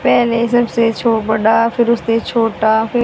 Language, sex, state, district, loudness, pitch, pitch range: Hindi, male, Haryana, Charkhi Dadri, -14 LUFS, 230 Hz, 225-235 Hz